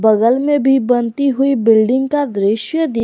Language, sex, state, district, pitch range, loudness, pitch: Hindi, female, Jharkhand, Garhwa, 225-275 Hz, -14 LUFS, 255 Hz